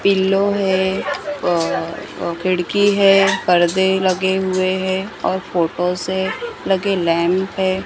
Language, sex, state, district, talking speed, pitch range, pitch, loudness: Hindi, female, Maharashtra, Mumbai Suburban, 120 wpm, 180-195 Hz, 190 Hz, -18 LUFS